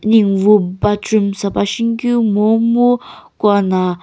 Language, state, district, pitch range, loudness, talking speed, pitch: Sumi, Nagaland, Kohima, 200-230 Hz, -14 LUFS, 90 wpm, 210 Hz